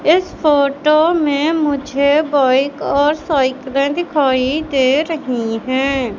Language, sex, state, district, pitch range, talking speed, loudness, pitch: Hindi, male, Madhya Pradesh, Katni, 265-305 Hz, 105 wpm, -15 LUFS, 285 Hz